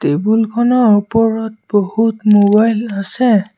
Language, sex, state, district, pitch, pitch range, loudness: Assamese, male, Assam, Sonitpur, 220 Hz, 205-225 Hz, -13 LUFS